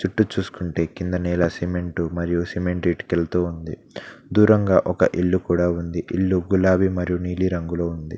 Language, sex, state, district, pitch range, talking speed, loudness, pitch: Telugu, male, Telangana, Mahabubabad, 85-95 Hz, 140 wpm, -22 LUFS, 90 Hz